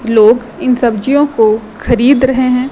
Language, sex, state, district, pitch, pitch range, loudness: Hindi, female, Chhattisgarh, Raipur, 245 Hz, 225-260 Hz, -11 LUFS